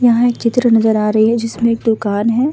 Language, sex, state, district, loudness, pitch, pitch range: Hindi, female, Uttar Pradesh, Budaun, -14 LUFS, 230 Hz, 220-235 Hz